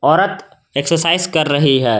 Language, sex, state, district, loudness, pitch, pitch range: Hindi, male, Jharkhand, Garhwa, -15 LUFS, 155 Hz, 140-165 Hz